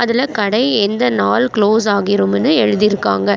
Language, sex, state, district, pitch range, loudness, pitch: Tamil, female, Karnataka, Bangalore, 200-235 Hz, -14 LUFS, 210 Hz